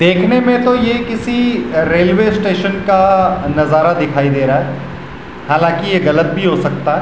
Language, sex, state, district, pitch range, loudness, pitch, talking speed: Hindi, male, Uttarakhand, Tehri Garhwal, 155-215 Hz, -13 LUFS, 180 Hz, 170 wpm